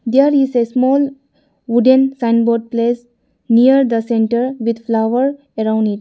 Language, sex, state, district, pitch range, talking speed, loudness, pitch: English, female, Arunachal Pradesh, Lower Dibang Valley, 230-265 Hz, 150 wpm, -15 LUFS, 240 Hz